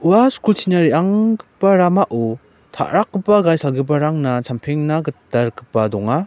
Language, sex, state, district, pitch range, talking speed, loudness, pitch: Garo, male, Meghalaya, West Garo Hills, 120-195 Hz, 105 wpm, -17 LUFS, 150 Hz